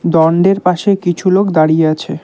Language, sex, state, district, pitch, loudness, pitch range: Bengali, male, West Bengal, Cooch Behar, 175 Hz, -12 LUFS, 160-190 Hz